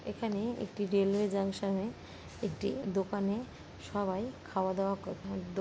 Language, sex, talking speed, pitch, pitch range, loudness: Awadhi, female, 65 wpm, 195 Hz, 195-205 Hz, -35 LUFS